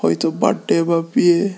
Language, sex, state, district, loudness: Bengali, male, Tripura, West Tripura, -17 LUFS